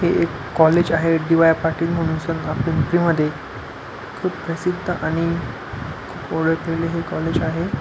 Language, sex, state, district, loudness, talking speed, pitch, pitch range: Marathi, male, Maharashtra, Pune, -20 LUFS, 130 wpm, 165 Hz, 160-165 Hz